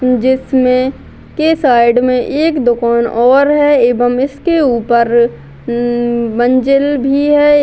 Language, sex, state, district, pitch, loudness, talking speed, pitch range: Hindi, female, Bihar, Gaya, 255 Hz, -12 LUFS, 120 wpm, 240-280 Hz